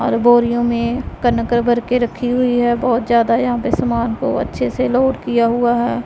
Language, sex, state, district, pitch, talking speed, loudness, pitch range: Hindi, female, Punjab, Pathankot, 240 Hz, 210 wpm, -16 LUFS, 235-245 Hz